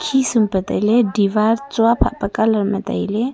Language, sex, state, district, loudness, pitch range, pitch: Wancho, female, Arunachal Pradesh, Longding, -17 LUFS, 205-240 Hz, 220 Hz